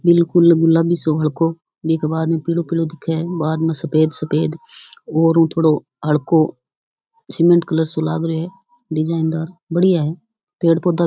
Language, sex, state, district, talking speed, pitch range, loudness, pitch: Rajasthani, female, Rajasthan, Churu, 165 wpm, 160-170 Hz, -18 LUFS, 165 Hz